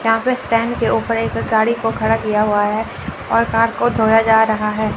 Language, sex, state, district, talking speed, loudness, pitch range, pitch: Hindi, female, Chandigarh, Chandigarh, 230 wpm, -16 LUFS, 220-230 Hz, 225 Hz